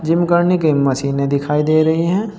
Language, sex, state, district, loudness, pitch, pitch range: Hindi, male, Uttar Pradesh, Saharanpur, -16 LUFS, 155 Hz, 140-175 Hz